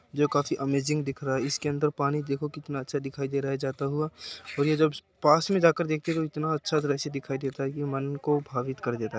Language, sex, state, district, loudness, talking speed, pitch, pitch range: Hindi, male, Uttar Pradesh, Muzaffarnagar, -28 LUFS, 280 wpm, 145 Hz, 135-150 Hz